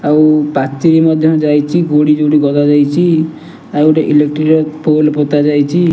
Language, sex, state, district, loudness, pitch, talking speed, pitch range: Odia, male, Odisha, Nuapada, -11 LUFS, 150 Hz, 130 wpm, 150-160 Hz